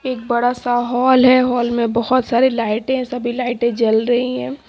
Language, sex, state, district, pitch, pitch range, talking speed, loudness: Hindi, female, Haryana, Jhajjar, 245 Hz, 235-255 Hz, 190 wpm, -17 LUFS